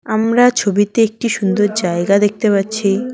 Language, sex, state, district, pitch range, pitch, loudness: Bengali, female, West Bengal, Cooch Behar, 200-225 Hz, 210 Hz, -15 LUFS